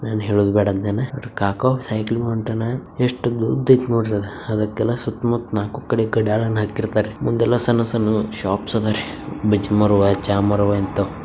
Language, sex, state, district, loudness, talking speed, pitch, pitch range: Kannada, male, Karnataka, Bijapur, -20 LUFS, 130 wpm, 110 Hz, 105-120 Hz